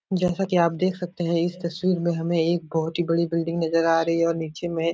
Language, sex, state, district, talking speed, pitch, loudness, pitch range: Hindi, male, Bihar, Supaul, 280 wpm, 170 Hz, -24 LUFS, 165-175 Hz